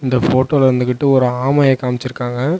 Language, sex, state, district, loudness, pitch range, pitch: Tamil, male, Tamil Nadu, Namakkal, -15 LUFS, 125-135 Hz, 130 Hz